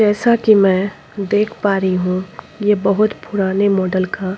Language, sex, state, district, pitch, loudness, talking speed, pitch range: Hindi, female, Chhattisgarh, Kabirdham, 200 Hz, -16 LUFS, 165 wpm, 190-210 Hz